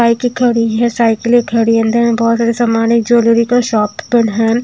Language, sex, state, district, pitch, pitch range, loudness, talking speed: Hindi, female, Bihar, Katihar, 235 Hz, 230-240 Hz, -12 LUFS, 220 wpm